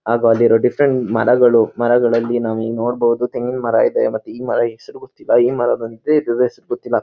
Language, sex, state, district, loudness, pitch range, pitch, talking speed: Kannada, male, Karnataka, Mysore, -16 LUFS, 115-125 Hz, 120 Hz, 160 wpm